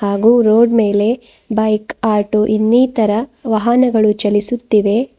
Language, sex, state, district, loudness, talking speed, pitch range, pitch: Kannada, female, Karnataka, Bidar, -14 LUFS, 90 wpm, 210-240 Hz, 220 Hz